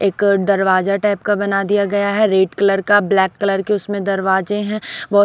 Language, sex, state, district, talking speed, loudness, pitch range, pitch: Hindi, female, Odisha, Sambalpur, 205 wpm, -16 LUFS, 195-205 Hz, 200 Hz